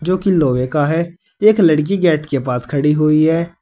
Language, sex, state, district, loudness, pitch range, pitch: Hindi, male, Uttar Pradesh, Saharanpur, -15 LUFS, 150-170 Hz, 160 Hz